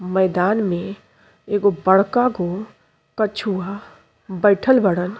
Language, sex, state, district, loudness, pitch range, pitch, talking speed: Bhojpuri, female, Uttar Pradesh, Ghazipur, -19 LUFS, 185-210 Hz, 195 Hz, 90 wpm